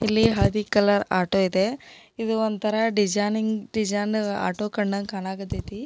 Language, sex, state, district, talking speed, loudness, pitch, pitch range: Kannada, female, Karnataka, Belgaum, 135 wpm, -24 LUFS, 210 Hz, 200-220 Hz